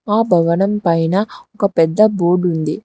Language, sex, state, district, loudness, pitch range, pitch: Telugu, female, Telangana, Hyderabad, -15 LUFS, 170-210 Hz, 180 Hz